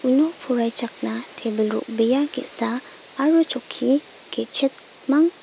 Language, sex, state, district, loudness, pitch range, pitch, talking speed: Garo, female, Meghalaya, West Garo Hills, -21 LUFS, 230-285 Hz, 255 Hz, 90 wpm